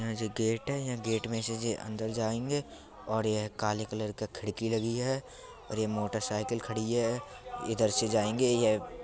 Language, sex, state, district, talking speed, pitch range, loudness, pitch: Bundeli, male, Uttar Pradesh, Budaun, 190 wpm, 110-115 Hz, -32 LUFS, 110 Hz